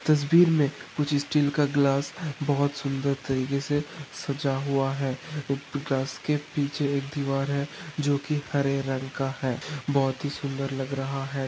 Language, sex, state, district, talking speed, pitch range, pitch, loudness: Hindi, male, Maharashtra, Pune, 150 wpm, 135-145 Hz, 140 Hz, -27 LUFS